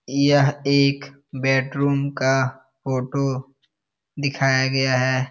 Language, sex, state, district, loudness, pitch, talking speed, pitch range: Hindi, male, Bihar, Jahanabad, -21 LUFS, 135 Hz, 90 wpm, 130-140 Hz